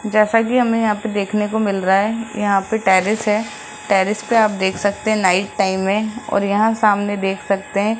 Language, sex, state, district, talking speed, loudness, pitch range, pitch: Hindi, male, Rajasthan, Jaipur, 220 wpm, -17 LUFS, 200-220 Hz, 210 Hz